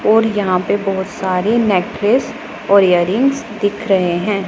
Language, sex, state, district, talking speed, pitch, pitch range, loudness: Hindi, female, Punjab, Pathankot, 145 wpm, 200 Hz, 185-215 Hz, -15 LUFS